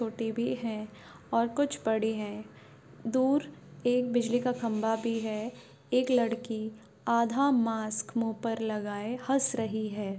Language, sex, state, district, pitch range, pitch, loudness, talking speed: Hindi, female, Bihar, Madhepura, 220-245 Hz, 230 Hz, -30 LUFS, 135 wpm